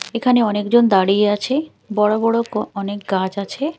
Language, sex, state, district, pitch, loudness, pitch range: Bengali, female, Chhattisgarh, Raipur, 210 Hz, -18 LUFS, 200-240 Hz